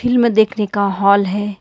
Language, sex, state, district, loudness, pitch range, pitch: Hindi, female, Karnataka, Bangalore, -15 LUFS, 200-220 Hz, 205 Hz